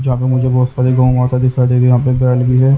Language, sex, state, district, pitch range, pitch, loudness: Hindi, male, Haryana, Jhajjar, 125-130 Hz, 125 Hz, -13 LUFS